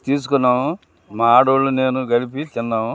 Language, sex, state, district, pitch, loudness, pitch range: Telugu, male, Andhra Pradesh, Guntur, 125 Hz, -18 LUFS, 115-135 Hz